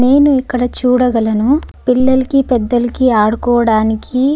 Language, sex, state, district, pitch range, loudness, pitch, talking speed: Telugu, female, Andhra Pradesh, Guntur, 235-260 Hz, -13 LUFS, 250 Hz, 95 wpm